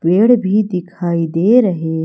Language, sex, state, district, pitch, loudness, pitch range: Hindi, female, Madhya Pradesh, Umaria, 180 Hz, -14 LUFS, 170-210 Hz